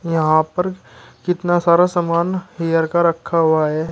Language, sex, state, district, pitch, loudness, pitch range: Hindi, male, Uttar Pradesh, Shamli, 170 Hz, -17 LUFS, 160-175 Hz